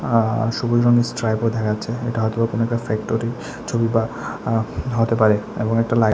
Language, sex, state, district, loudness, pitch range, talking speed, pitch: Bengali, male, Tripura, West Tripura, -20 LUFS, 110-115 Hz, 195 wpm, 115 Hz